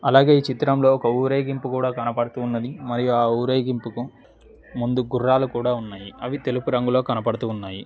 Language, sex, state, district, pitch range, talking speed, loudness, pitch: Telugu, male, Telangana, Mahabubabad, 120-130 Hz, 145 wpm, -22 LUFS, 125 Hz